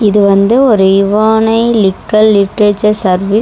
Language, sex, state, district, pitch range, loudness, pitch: Tamil, female, Tamil Nadu, Chennai, 195-220 Hz, -9 LUFS, 210 Hz